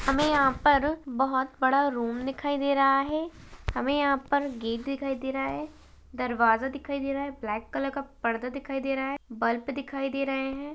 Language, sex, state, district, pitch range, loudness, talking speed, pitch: Hindi, female, Uttarakhand, Tehri Garhwal, 260-280 Hz, -28 LUFS, 200 wpm, 275 Hz